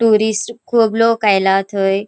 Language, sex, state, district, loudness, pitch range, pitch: Konkani, female, Goa, North and South Goa, -15 LUFS, 195-230 Hz, 215 Hz